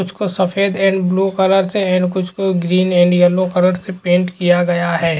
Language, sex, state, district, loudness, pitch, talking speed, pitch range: Hindi, male, Uttar Pradesh, Hamirpur, -15 LUFS, 185 Hz, 205 wpm, 180-190 Hz